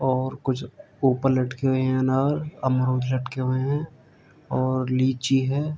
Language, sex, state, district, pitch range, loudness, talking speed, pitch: Hindi, male, Uttar Pradesh, Jalaun, 130-135 Hz, -24 LUFS, 145 wpm, 130 Hz